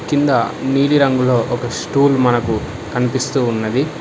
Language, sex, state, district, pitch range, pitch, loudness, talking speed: Telugu, male, Telangana, Hyderabad, 120-140 Hz, 130 Hz, -16 LUFS, 105 wpm